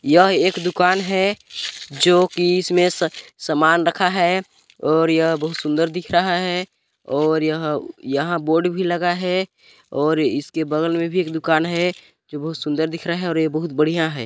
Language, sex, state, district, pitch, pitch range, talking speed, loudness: Hindi, male, Chhattisgarh, Balrampur, 170 Hz, 160-180 Hz, 175 wpm, -19 LUFS